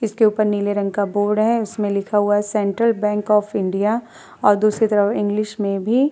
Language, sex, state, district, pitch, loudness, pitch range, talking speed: Hindi, female, Uttar Pradesh, Hamirpur, 210 Hz, -19 LUFS, 205-220 Hz, 215 wpm